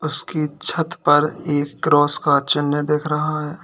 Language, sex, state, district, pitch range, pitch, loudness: Hindi, male, Uttar Pradesh, Lalitpur, 145-155 Hz, 150 Hz, -19 LUFS